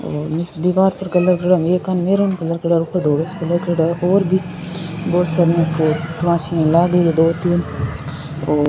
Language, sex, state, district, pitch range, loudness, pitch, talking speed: Rajasthani, female, Rajasthan, Churu, 165-180 Hz, -17 LUFS, 170 Hz, 140 wpm